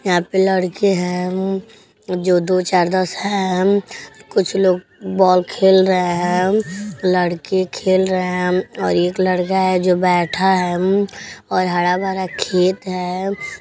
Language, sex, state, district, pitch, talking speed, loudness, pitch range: Bhojpuri, female, Uttar Pradesh, Deoria, 185 Hz, 140 wpm, -17 LUFS, 180-190 Hz